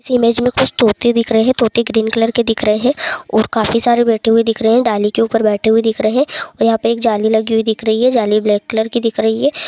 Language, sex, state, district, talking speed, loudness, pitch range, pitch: Hindi, female, Bihar, Saharsa, 280 wpm, -14 LUFS, 220-240 Hz, 225 Hz